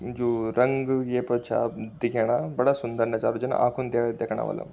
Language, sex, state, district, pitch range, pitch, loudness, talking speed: Garhwali, male, Uttarakhand, Tehri Garhwal, 115-125 Hz, 120 Hz, -26 LUFS, 175 wpm